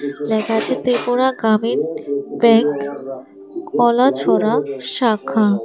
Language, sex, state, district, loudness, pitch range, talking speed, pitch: Bengali, female, Tripura, West Tripura, -17 LUFS, 140-235 Hz, 75 wpm, 215 Hz